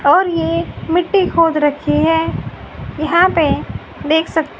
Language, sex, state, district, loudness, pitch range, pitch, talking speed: Hindi, female, Haryana, Rohtak, -15 LUFS, 310-345 Hz, 325 Hz, 130 wpm